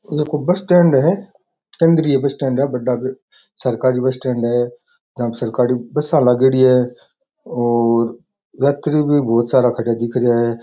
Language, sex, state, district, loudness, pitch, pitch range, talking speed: Rajasthani, male, Rajasthan, Nagaur, -17 LUFS, 130 Hz, 120-150 Hz, 160 wpm